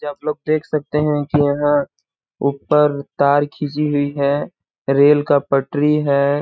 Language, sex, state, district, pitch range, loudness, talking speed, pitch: Hindi, male, Chhattisgarh, Balrampur, 140-150 Hz, -17 LUFS, 150 wpm, 145 Hz